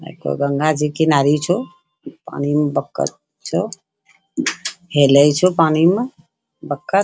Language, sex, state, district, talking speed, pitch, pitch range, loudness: Angika, female, Bihar, Bhagalpur, 135 wpm, 160 Hz, 145-175 Hz, -18 LUFS